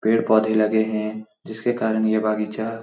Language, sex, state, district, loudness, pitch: Hindi, male, Bihar, Supaul, -21 LUFS, 110 Hz